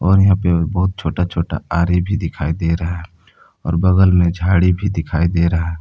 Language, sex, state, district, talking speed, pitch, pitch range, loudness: Hindi, male, Jharkhand, Palamu, 195 wpm, 85 Hz, 85-95 Hz, -17 LUFS